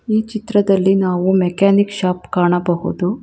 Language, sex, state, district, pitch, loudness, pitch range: Kannada, female, Karnataka, Bangalore, 190 Hz, -16 LUFS, 180-205 Hz